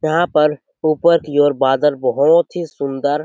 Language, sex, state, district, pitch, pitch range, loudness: Hindi, male, Chhattisgarh, Sarguja, 155 Hz, 145-170 Hz, -16 LUFS